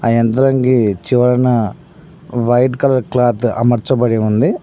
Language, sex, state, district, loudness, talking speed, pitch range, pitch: Telugu, male, Telangana, Mahabubabad, -14 LUFS, 105 wpm, 115-130 Hz, 125 Hz